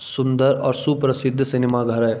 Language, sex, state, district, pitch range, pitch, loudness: Hindi, male, Jharkhand, Jamtara, 120-135 Hz, 130 Hz, -19 LUFS